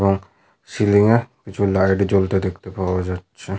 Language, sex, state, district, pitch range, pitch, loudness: Bengali, male, Jharkhand, Sahebganj, 95-100 Hz, 95 Hz, -19 LUFS